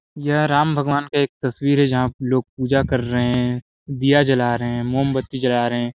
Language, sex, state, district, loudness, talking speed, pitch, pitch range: Hindi, male, Chhattisgarh, Sarguja, -19 LUFS, 230 wpm, 130 Hz, 125-140 Hz